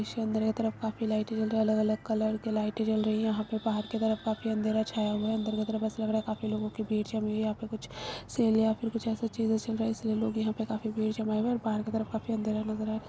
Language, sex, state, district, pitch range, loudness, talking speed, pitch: Hindi, female, Uttar Pradesh, Budaun, 215-220 Hz, -31 LUFS, 315 wpm, 220 Hz